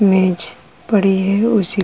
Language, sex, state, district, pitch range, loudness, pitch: Hindi, female, Uttar Pradesh, Jalaun, 190-205 Hz, -14 LUFS, 195 Hz